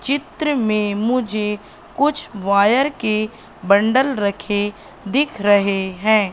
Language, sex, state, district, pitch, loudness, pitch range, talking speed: Hindi, female, Madhya Pradesh, Katni, 215 Hz, -18 LUFS, 205-265 Hz, 105 wpm